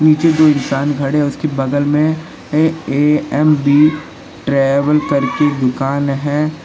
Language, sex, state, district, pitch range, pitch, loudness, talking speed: Hindi, male, Uttar Pradesh, Lalitpur, 140-155 Hz, 145 Hz, -14 LUFS, 115 wpm